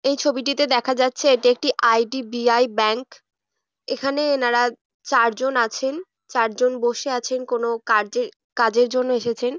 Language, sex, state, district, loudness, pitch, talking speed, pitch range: Bengali, female, West Bengal, Jhargram, -20 LUFS, 250 Hz, 145 wpm, 235-265 Hz